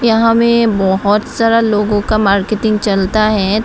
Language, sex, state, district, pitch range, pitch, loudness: Hindi, female, Tripura, West Tripura, 205-225 Hz, 215 Hz, -13 LUFS